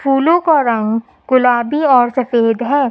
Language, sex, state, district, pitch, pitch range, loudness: Hindi, female, Uttar Pradesh, Lucknow, 255 Hz, 235-285 Hz, -14 LUFS